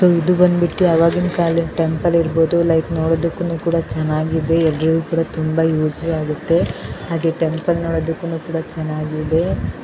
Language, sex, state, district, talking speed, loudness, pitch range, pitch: Kannada, female, Karnataka, Bellary, 120 wpm, -18 LUFS, 160-170 Hz, 165 Hz